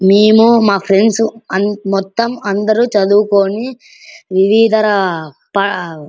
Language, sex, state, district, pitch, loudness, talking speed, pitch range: Telugu, male, Andhra Pradesh, Anantapur, 205 Hz, -13 LUFS, 80 wpm, 195-220 Hz